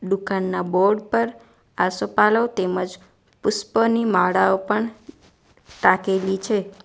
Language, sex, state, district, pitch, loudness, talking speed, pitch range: Gujarati, female, Gujarat, Valsad, 205 Hz, -21 LUFS, 90 wpm, 190-220 Hz